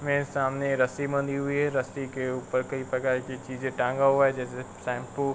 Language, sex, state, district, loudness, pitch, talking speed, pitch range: Hindi, male, Uttar Pradesh, Varanasi, -28 LUFS, 130 Hz, 225 wpm, 130-140 Hz